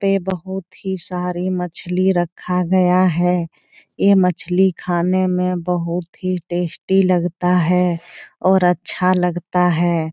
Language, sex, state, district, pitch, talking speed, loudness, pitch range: Hindi, female, Bihar, Supaul, 180 Hz, 125 wpm, -18 LUFS, 175-185 Hz